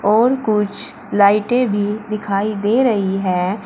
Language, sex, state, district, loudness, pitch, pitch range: Hindi, female, Uttar Pradesh, Shamli, -17 LUFS, 210 Hz, 200-220 Hz